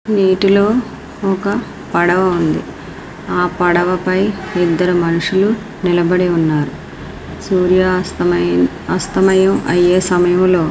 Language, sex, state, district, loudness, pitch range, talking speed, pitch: Telugu, female, Andhra Pradesh, Srikakulam, -15 LUFS, 170-190 Hz, 85 wpm, 180 Hz